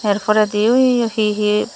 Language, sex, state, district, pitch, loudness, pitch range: Chakma, female, Tripura, Dhalai, 215 Hz, -16 LUFS, 210-230 Hz